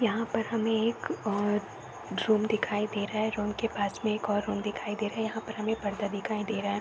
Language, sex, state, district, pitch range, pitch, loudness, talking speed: Hindi, female, Uttar Pradesh, Varanasi, 205-220 Hz, 210 Hz, -30 LUFS, 255 wpm